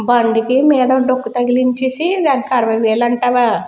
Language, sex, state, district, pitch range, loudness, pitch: Telugu, female, Andhra Pradesh, Guntur, 240-260 Hz, -14 LUFS, 250 Hz